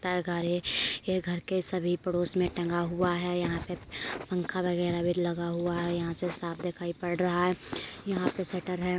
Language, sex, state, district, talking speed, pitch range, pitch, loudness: Hindi, female, Uttar Pradesh, Etah, 200 wpm, 175-180 Hz, 175 Hz, -31 LUFS